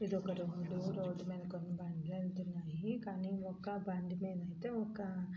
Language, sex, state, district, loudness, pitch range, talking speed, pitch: Telugu, female, Andhra Pradesh, Anantapur, -42 LUFS, 180-190 Hz, 145 wpm, 185 Hz